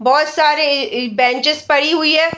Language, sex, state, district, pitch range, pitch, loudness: Hindi, female, Bihar, Darbhanga, 260-310 Hz, 295 Hz, -14 LUFS